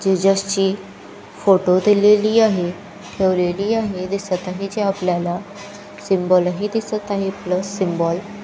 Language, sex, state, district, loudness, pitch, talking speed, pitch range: Marathi, female, Maharashtra, Chandrapur, -19 LUFS, 195 Hz, 120 wpm, 180-205 Hz